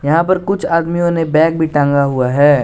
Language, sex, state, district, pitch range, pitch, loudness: Hindi, male, Jharkhand, Garhwa, 145-170 Hz, 160 Hz, -14 LUFS